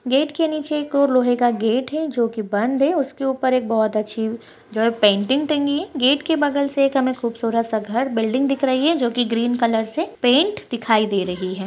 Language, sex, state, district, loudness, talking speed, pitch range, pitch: Hindi, female, Bihar, Bhagalpur, -20 LUFS, 200 wpm, 225-280 Hz, 250 Hz